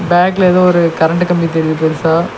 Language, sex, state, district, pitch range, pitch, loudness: Tamil, male, Tamil Nadu, Nilgiris, 160-180 Hz, 170 Hz, -12 LUFS